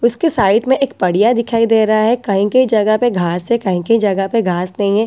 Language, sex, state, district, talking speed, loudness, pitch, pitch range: Hindi, female, Delhi, New Delhi, 235 wpm, -14 LUFS, 220 Hz, 195-235 Hz